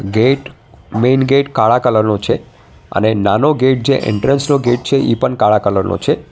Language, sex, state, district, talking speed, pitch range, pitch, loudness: Gujarati, male, Gujarat, Valsad, 190 wpm, 105-135 Hz, 120 Hz, -14 LUFS